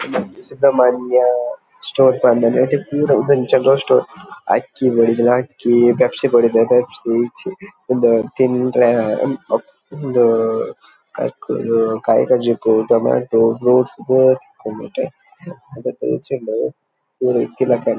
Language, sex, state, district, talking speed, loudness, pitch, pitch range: Tulu, male, Karnataka, Dakshina Kannada, 95 wpm, -16 LUFS, 125 Hz, 115-130 Hz